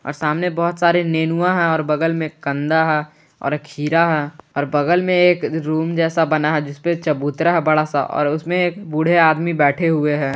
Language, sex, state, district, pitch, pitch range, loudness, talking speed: Hindi, male, Jharkhand, Garhwa, 160 Hz, 150-170 Hz, -18 LUFS, 190 wpm